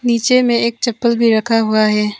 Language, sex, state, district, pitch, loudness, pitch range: Hindi, female, Arunachal Pradesh, Papum Pare, 230 Hz, -14 LUFS, 215-235 Hz